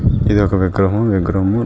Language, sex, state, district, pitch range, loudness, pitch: Telugu, male, Telangana, Karimnagar, 95-105 Hz, -15 LUFS, 100 Hz